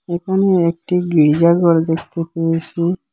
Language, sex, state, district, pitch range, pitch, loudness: Bengali, male, Assam, Hailakandi, 165-180 Hz, 170 Hz, -16 LUFS